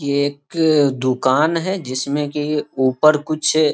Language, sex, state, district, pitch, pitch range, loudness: Hindi, male, Bihar, Saharsa, 145 Hz, 140-155 Hz, -18 LUFS